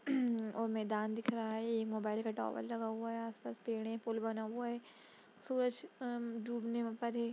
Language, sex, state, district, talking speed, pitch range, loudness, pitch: Hindi, female, Uttar Pradesh, Budaun, 205 wpm, 220-235 Hz, -40 LUFS, 230 Hz